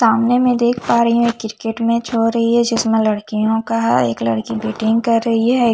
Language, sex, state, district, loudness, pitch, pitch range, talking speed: Hindi, female, Chhattisgarh, Jashpur, -16 LUFS, 230 Hz, 220-235 Hz, 230 wpm